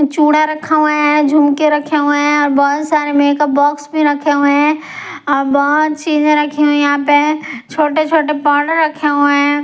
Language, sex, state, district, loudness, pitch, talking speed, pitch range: Hindi, female, Punjab, Pathankot, -13 LUFS, 295 Hz, 180 wpm, 290-305 Hz